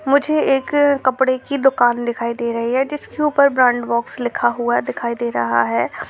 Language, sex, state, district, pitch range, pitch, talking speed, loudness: Hindi, female, Bihar, Jamui, 235-280 Hz, 250 Hz, 185 wpm, -18 LUFS